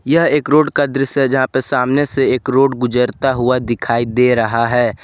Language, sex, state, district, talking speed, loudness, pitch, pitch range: Hindi, male, Jharkhand, Garhwa, 215 wpm, -15 LUFS, 130 Hz, 120-135 Hz